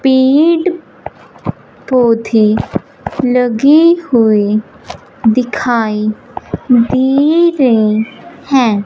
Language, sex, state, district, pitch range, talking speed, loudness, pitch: Hindi, female, Punjab, Fazilka, 220-275 Hz, 55 wpm, -12 LUFS, 250 Hz